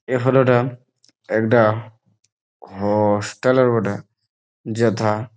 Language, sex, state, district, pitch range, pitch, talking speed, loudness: Bengali, male, West Bengal, Malda, 105-125 Hz, 110 Hz, 80 wpm, -19 LUFS